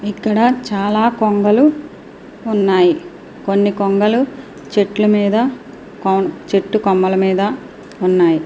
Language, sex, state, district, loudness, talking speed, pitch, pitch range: Telugu, female, Andhra Pradesh, Srikakulam, -15 LUFS, 80 wpm, 205 Hz, 195-235 Hz